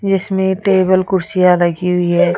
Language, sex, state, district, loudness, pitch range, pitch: Hindi, female, Rajasthan, Jaipur, -14 LUFS, 175-190 Hz, 185 Hz